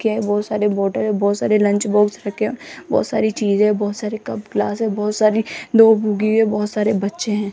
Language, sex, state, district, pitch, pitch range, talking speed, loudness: Hindi, female, Rajasthan, Jaipur, 210 Hz, 205-215 Hz, 230 wpm, -18 LUFS